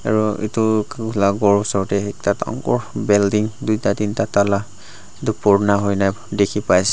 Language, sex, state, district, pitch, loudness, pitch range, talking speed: Nagamese, male, Nagaland, Dimapur, 105 Hz, -19 LUFS, 100-110 Hz, 155 wpm